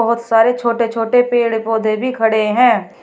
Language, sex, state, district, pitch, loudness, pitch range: Hindi, female, Uttar Pradesh, Shamli, 230 Hz, -15 LUFS, 225-240 Hz